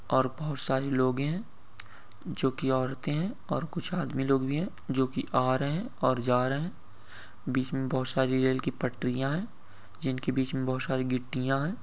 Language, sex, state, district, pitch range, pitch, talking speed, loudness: Hindi, male, Uttar Pradesh, Deoria, 130-140 Hz, 130 Hz, 195 wpm, -30 LUFS